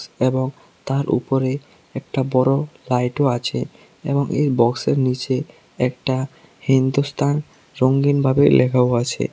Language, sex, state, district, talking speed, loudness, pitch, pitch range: Bengali, male, Tripura, South Tripura, 115 wpm, -20 LUFS, 135 Hz, 130-140 Hz